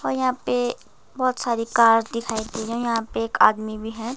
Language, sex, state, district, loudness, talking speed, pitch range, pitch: Hindi, male, Himachal Pradesh, Shimla, -22 LUFS, 215 wpm, 220-240 Hz, 230 Hz